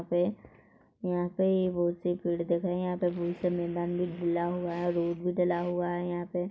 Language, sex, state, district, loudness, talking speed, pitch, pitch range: Hindi, female, Chhattisgarh, Korba, -31 LUFS, 240 wpm, 175 Hz, 175-180 Hz